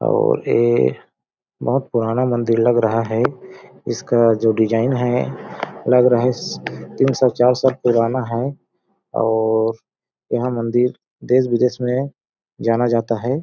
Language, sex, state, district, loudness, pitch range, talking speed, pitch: Hindi, male, Chhattisgarh, Balrampur, -18 LUFS, 115-130 Hz, 130 wpm, 120 Hz